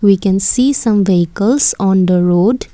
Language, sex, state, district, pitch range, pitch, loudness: English, female, Assam, Kamrup Metropolitan, 185-230 Hz, 195 Hz, -12 LUFS